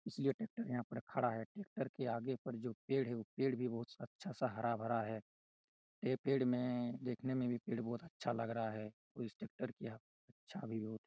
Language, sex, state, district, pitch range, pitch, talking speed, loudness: Hindi, male, Chhattisgarh, Raigarh, 115-130 Hz, 120 Hz, 215 wpm, -42 LUFS